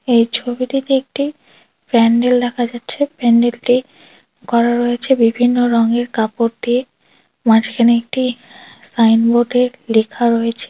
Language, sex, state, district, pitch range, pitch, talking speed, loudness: Bengali, female, West Bengal, Dakshin Dinajpur, 235-250 Hz, 240 Hz, 110 wpm, -15 LUFS